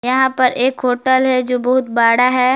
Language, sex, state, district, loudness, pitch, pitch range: Hindi, female, Jharkhand, Palamu, -14 LUFS, 255 Hz, 250-260 Hz